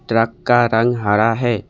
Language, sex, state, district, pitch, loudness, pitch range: Hindi, male, Assam, Kamrup Metropolitan, 115 Hz, -16 LUFS, 110-120 Hz